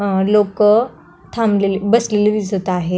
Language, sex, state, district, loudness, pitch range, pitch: Marathi, female, Maharashtra, Pune, -16 LUFS, 195-215 Hz, 205 Hz